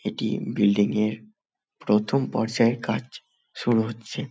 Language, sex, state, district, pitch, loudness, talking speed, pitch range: Bengali, male, West Bengal, Malda, 110 Hz, -24 LUFS, 125 wpm, 105-115 Hz